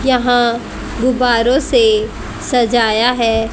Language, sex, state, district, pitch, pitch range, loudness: Hindi, female, Haryana, Rohtak, 245 Hz, 235-255 Hz, -14 LUFS